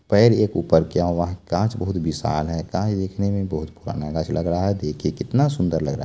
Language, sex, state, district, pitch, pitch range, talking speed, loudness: Maithili, male, Bihar, Supaul, 90 Hz, 80-100 Hz, 250 wpm, -22 LUFS